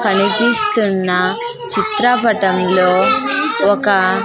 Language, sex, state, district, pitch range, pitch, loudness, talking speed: Telugu, female, Andhra Pradesh, Sri Satya Sai, 190-260 Hz, 210 Hz, -14 LUFS, 55 wpm